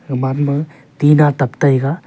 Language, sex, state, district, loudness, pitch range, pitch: Wancho, male, Arunachal Pradesh, Longding, -15 LUFS, 135-150 Hz, 140 Hz